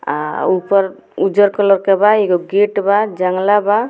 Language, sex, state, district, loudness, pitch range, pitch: Bhojpuri, female, Bihar, Muzaffarpur, -14 LUFS, 185-205 Hz, 200 Hz